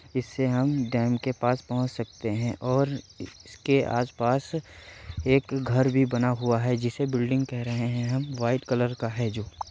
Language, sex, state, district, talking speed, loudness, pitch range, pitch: Hindi, male, Uttar Pradesh, Varanasi, 180 wpm, -27 LUFS, 120-130 Hz, 125 Hz